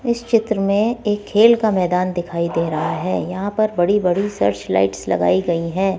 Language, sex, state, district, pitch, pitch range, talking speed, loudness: Hindi, female, Rajasthan, Jaipur, 185 Hz, 170-210 Hz, 200 wpm, -18 LUFS